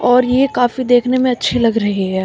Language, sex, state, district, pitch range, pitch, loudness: Hindi, female, Uttar Pradesh, Shamli, 225-255 Hz, 245 Hz, -14 LUFS